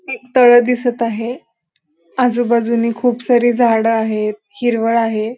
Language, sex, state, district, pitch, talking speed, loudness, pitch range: Marathi, female, Maharashtra, Pune, 235 Hz, 110 wpm, -15 LUFS, 225-245 Hz